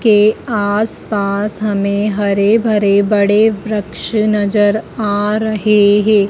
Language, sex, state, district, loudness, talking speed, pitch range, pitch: Hindi, female, Madhya Pradesh, Dhar, -14 LUFS, 115 wpm, 205-215 Hz, 210 Hz